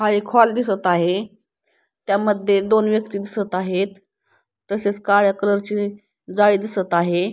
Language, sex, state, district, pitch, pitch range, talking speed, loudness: Marathi, female, Maharashtra, Pune, 205 Hz, 195-210 Hz, 130 wpm, -19 LUFS